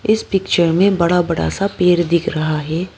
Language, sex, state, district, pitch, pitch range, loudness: Hindi, female, Arunachal Pradesh, Lower Dibang Valley, 175 Hz, 165-195 Hz, -16 LUFS